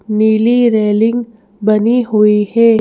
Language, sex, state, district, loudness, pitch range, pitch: Hindi, female, Madhya Pradesh, Bhopal, -12 LUFS, 210-230 Hz, 220 Hz